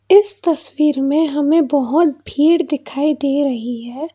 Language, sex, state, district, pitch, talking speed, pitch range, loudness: Hindi, female, Karnataka, Bangalore, 295 Hz, 145 wpm, 280-325 Hz, -16 LUFS